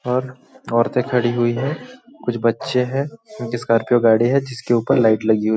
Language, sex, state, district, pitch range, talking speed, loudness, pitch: Hindi, male, Chhattisgarh, Balrampur, 115-135 Hz, 205 wpm, -19 LUFS, 120 Hz